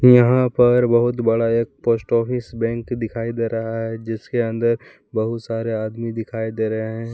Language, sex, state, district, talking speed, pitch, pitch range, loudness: Hindi, male, Jharkhand, Palamu, 175 wpm, 115 Hz, 115-120 Hz, -20 LUFS